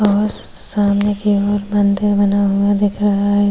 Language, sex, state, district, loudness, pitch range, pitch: Hindi, female, Uttar Pradesh, Jyotiba Phule Nagar, -16 LUFS, 200-205 Hz, 205 Hz